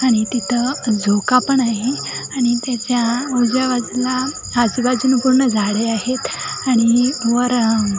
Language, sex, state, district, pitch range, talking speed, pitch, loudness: Marathi, female, Maharashtra, Sindhudurg, 230-255 Hz, 120 wpm, 245 Hz, -17 LUFS